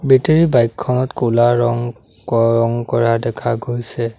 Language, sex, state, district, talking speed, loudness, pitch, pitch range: Assamese, male, Assam, Sonitpur, 145 wpm, -16 LUFS, 120 Hz, 115-120 Hz